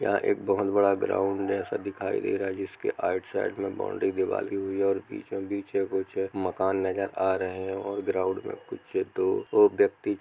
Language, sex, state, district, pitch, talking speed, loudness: Hindi, male, Jharkhand, Jamtara, 100 Hz, 200 wpm, -28 LUFS